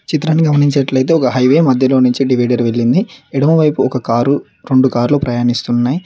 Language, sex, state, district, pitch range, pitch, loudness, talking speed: Telugu, male, Telangana, Mahabubabad, 125-145 Hz, 130 Hz, -13 LUFS, 140 wpm